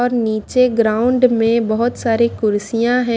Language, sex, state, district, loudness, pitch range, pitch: Hindi, female, Haryana, Jhajjar, -16 LUFS, 225-245 Hz, 230 Hz